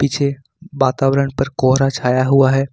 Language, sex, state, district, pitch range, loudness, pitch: Hindi, male, Jharkhand, Ranchi, 130-140 Hz, -16 LUFS, 135 Hz